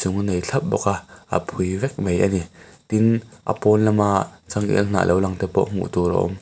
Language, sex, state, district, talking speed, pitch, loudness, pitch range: Mizo, male, Mizoram, Aizawl, 235 wpm, 95 Hz, -21 LUFS, 90-105 Hz